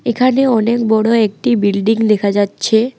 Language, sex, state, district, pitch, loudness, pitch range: Bengali, female, West Bengal, Alipurduar, 220 Hz, -14 LUFS, 210-235 Hz